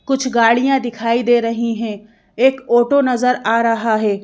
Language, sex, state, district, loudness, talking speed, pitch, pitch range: Hindi, female, Madhya Pradesh, Bhopal, -16 LUFS, 170 wpm, 235 Hz, 230-250 Hz